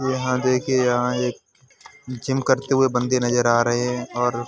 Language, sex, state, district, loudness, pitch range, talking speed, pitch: Hindi, male, Uttar Pradesh, Hamirpur, -21 LUFS, 120-130 Hz, 190 wpm, 125 Hz